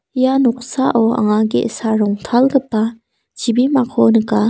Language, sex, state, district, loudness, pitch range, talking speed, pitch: Garo, female, Meghalaya, South Garo Hills, -15 LUFS, 220-255 Hz, 95 wpm, 230 Hz